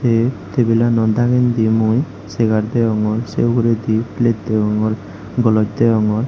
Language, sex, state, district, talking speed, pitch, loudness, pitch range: Chakma, male, Tripura, Unakoti, 125 wpm, 110 Hz, -17 LUFS, 110-120 Hz